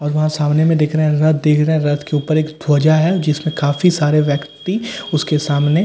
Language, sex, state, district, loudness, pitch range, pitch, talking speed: Hindi, male, Bihar, Katihar, -16 LUFS, 150-155 Hz, 155 Hz, 255 wpm